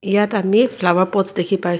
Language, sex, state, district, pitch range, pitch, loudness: Assamese, female, Assam, Kamrup Metropolitan, 185-205 Hz, 195 Hz, -17 LUFS